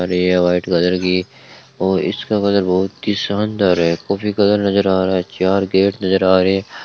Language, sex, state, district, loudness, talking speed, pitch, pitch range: Hindi, male, Rajasthan, Bikaner, -16 LUFS, 210 wpm, 95 Hz, 90-100 Hz